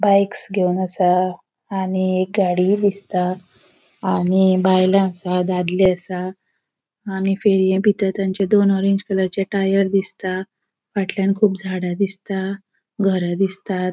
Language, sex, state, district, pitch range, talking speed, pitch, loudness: Konkani, female, Goa, North and South Goa, 185-195 Hz, 100 wpm, 190 Hz, -19 LUFS